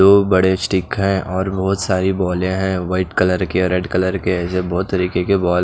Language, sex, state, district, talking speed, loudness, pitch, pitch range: Hindi, male, Odisha, Nuapada, 225 wpm, -18 LUFS, 95 Hz, 90-95 Hz